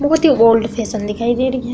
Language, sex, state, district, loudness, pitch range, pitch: Hindi, female, Uttar Pradesh, Deoria, -15 LUFS, 225-260 Hz, 240 Hz